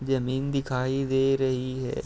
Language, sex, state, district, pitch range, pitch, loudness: Hindi, male, Uttar Pradesh, Etah, 130-135 Hz, 135 Hz, -27 LUFS